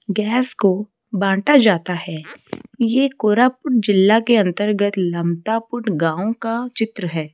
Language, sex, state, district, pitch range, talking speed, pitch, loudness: Hindi, female, Odisha, Malkangiri, 185-235 Hz, 120 wpm, 210 Hz, -18 LUFS